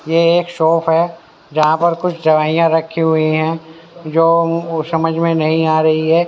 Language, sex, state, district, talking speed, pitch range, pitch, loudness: Hindi, male, Haryana, Rohtak, 170 wpm, 160-165 Hz, 165 Hz, -15 LUFS